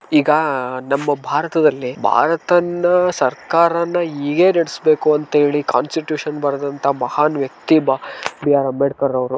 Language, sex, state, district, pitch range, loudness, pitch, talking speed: Kannada, male, Karnataka, Dharwad, 140-165 Hz, -17 LUFS, 150 Hz, 70 wpm